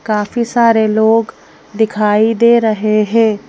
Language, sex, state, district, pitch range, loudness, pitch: Hindi, female, Madhya Pradesh, Bhopal, 215-230 Hz, -12 LUFS, 220 Hz